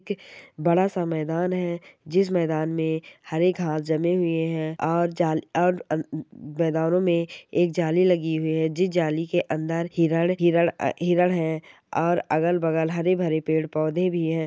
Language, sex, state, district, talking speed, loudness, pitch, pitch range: Hindi, male, Bihar, Sitamarhi, 115 wpm, -24 LUFS, 165 Hz, 160-175 Hz